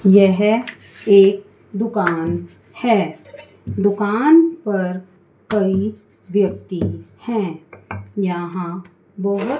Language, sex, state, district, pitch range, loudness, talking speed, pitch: Hindi, female, Chandigarh, Chandigarh, 175-210 Hz, -18 LUFS, 70 wpm, 195 Hz